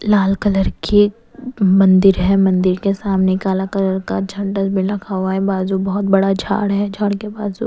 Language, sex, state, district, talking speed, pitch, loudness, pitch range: Hindi, female, Bihar, West Champaran, 190 wpm, 195 Hz, -16 LUFS, 190-205 Hz